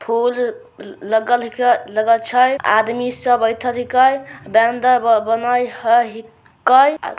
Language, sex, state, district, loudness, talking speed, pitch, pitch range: Maithili, male, Bihar, Samastipur, -16 LUFS, 115 wpm, 245 Hz, 230-250 Hz